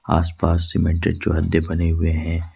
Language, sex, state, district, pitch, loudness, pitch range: Hindi, male, Jharkhand, Ranchi, 85 Hz, -21 LUFS, 80-85 Hz